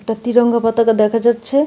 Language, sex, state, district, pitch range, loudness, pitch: Bengali, female, Tripura, West Tripura, 225-240 Hz, -14 LUFS, 230 Hz